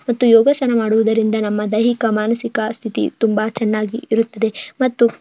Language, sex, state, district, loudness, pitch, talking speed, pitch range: Kannada, female, Karnataka, Bijapur, -17 LUFS, 225 Hz, 115 wpm, 220-235 Hz